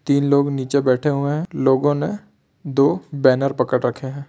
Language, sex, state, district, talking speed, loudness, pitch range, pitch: Hindi, male, Andhra Pradesh, Anantapur, 180 wpm, -19 LUFS, 130-145 Hz, 140 Hz